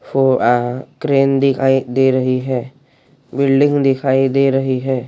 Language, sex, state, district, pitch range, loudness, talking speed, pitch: Hindi, male, Chhattisgarh, Raigarh, 130-135 Hz, -15 LUFS, 120 wpm, 135 Hz